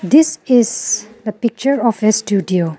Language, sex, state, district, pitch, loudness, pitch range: English, female, Arunachal Pradesh, Lower Dibang Valley, 220 Hz, -16 LUFS, 200-245 Hz